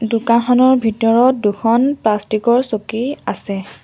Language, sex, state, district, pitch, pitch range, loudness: Assamese, female, Assam, Sonitpur, 230 Hz, 215-250 Hz, -15 LUFS